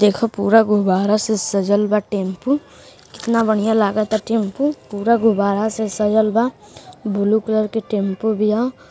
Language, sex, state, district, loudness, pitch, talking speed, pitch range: Bhojpuri, female, Uttar Pradesh, Gorakhpur, -18 LUFS, 215 Hz, 150 wpm, 200-225 Hz